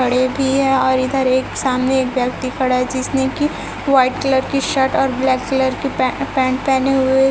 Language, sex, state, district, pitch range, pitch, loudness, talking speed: Hindi, female, Chhattisgarh, Raipur, 255-270 Hz, 265 Hz, -17 LUFS, 215 wpm